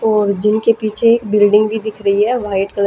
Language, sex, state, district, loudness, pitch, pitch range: Hindi, female, Haryana, Jhajjar, -14 LUFS, 210 Hz, 205-220 Hz